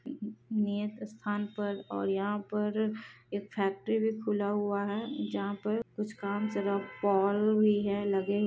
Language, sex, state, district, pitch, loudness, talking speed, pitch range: Hindi, female, Bihar, Jahanabad, 205 Hz, -32 LUFS, 155 wpm, 200-215 Hz